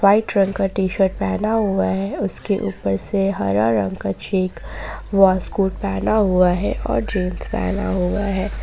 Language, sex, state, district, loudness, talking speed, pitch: Hindi, female, Jharkhand, Ranchi, -20 LUFS, 165 wpm, 185 Hz